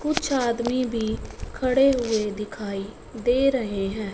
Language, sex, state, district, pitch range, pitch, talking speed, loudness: Hindi, female, Punjab, Fazilka, 210-260 Hz, 235 Hz, 130 wpm, -24 LUFS